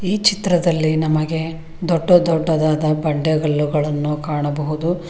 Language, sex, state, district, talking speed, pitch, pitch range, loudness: Kannada, female, Karnataka, Bangalore, 80 wpm, 155 Hz, 150-170 Hz, -18 LUFS